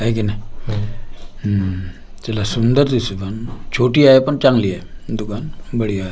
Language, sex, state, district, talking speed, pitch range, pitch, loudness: Marathi, male, Maharashtra, Gondia, 155 wpm, 100-120 Hz, 105 Hz, -18 LUFS